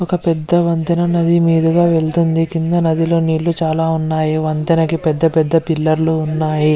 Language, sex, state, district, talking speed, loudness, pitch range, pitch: Telugu, male, Andhra Pradesh, Visakhapatnam, 160 wpm, -15 LUFS, 160-170 Hz, 165 Hz